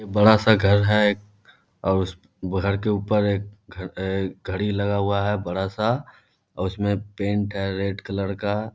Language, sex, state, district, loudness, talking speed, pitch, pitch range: Hindi, male, Bihar, Darbhanga, -23 LUFS, 160 wpm, 100 Hz, 95-105 Hz